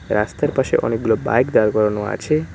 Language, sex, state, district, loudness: Bengali, male, West Bengal, Cooch Behar, -19 LUFS